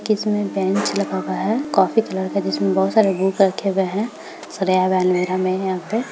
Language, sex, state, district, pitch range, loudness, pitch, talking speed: Hindi, female, Bihar, Madhepura, 185-210 Hz, -20 LUFS, 190 Hz, 225 wpm